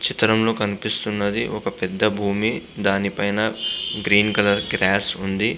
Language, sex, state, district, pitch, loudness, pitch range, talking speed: Telugu, male, Andhra Pradesh, Visakhapatnam, 105 Hz, -20 LUFS, 100-110 Hz, 120 wpm